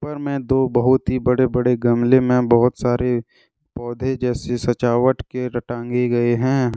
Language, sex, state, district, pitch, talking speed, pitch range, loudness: Hindi, male, Jharkhand, Deoghar, 125 Hz, 170 wpm, 120-130 Hz, -19 LUFS